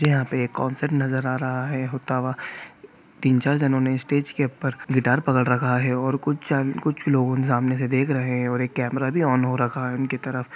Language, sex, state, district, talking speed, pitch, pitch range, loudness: Hindi, male, Bihar, Gopalganj, 235 wpm, 130 Hz, 125-135 Hz, -23 LUFS